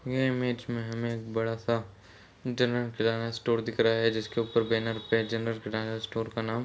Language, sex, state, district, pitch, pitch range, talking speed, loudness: Hindi, male, Chhattisgarh, Raigarh, 115 Hz, 115-120 Hz, 200 wpm, -30 LUFS